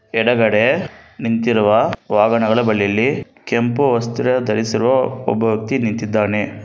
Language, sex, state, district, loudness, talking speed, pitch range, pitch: Kannada, male, Karnataka, Bangalore, -17 LUFS, 90 wpm, 105-115 Hz, 110 Hz